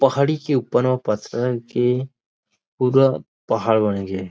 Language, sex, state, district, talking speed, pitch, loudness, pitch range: Chhattisgarhi, male, Chhattisgarh, Rajnandgaon, 155 wpm, 125 Hz, -20 LUFS, 110-135 Hz